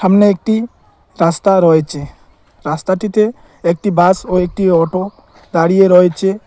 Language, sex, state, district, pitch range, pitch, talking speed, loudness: Bengali, male, West Bengal, Cooch Behar, 170-205 Hz, 185 Hz, 110 wpm, -13 LUFS